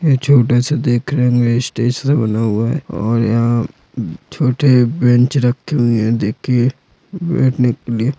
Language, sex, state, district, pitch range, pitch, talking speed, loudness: Hindi, male, Uttar Pradesh, Etah, 115-135 Hz, 125 Hz, 130 wpm, -15 LUFS